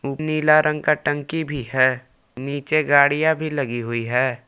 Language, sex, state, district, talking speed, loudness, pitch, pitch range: Hindi, male, Jharkhand, Palamu, 160 wpm, -20 LUFS, 140 Hz, 130-155 Hz